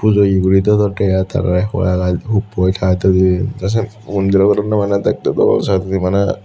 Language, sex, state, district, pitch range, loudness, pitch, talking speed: Chakma, male, Tripura, Dhalai, 95-105 Hz, -15 LUFS, 95 Hz, 175 wpm